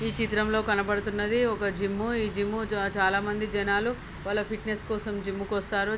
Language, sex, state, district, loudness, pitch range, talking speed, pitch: Telugu, male, Andhra Pradesh, Krishna, -28 LUFS, 200-220 Hz, 150 wpm, 210 Hz